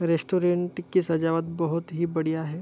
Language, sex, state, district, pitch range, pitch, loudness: Hindi, male, Bihar, Begusarai, 165-175 Hz, 165 Hz, -26 LUFS